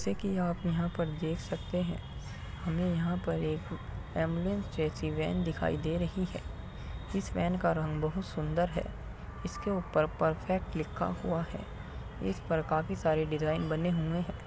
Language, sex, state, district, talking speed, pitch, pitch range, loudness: Hindi, female, Uttar Pradesh, Muzaffarnagar, 165 wpm, 165 Hz, 155-175 Hz, -33 LUFS